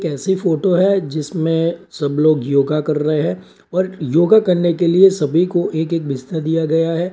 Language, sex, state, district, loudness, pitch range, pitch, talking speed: Hindi, male, Uttar Pradesh, Varanasi, -16 LUFS, 155-180 Hz, 165 Hz, 185 wpm